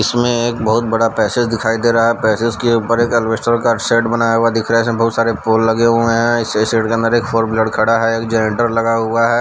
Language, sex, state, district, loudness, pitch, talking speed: Hindi, male, Bihar, West Champaran, -15 LUFS, 115 Hz, 275 wpm